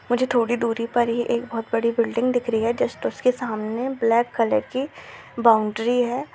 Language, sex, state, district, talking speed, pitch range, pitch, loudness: Hindi, female, Chhattisgarh, Rajnandgaon, 190 wpm, 230-245 Hz, 235 Hz, -22 LUFS